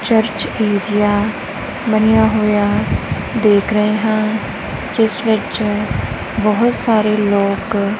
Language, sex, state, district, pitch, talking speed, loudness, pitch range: Punjabi, female, Punjab, Kapurthala, 215 Hz, 90 wpm, -16 LUFS, 205-220 Hz